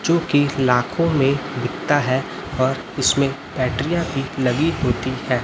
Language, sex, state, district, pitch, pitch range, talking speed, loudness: Hindi, male, Chhattisgarh, Raipur, 135 Hz, 130-145 Hz, 145 wpm, -20 LUFS